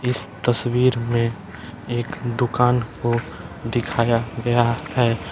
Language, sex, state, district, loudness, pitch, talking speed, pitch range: Hindi, male, Bihar, East Champaran, -21 LUFS, 120 Hz, 100 wpm, 115-125 Hz